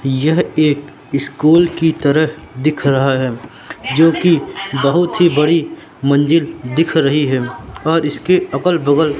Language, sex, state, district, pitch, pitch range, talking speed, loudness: Hindi, male, Madhya Pradesh, Katni, 155 Hz, 140-165 Hz, 135 wpm, -15 LUFS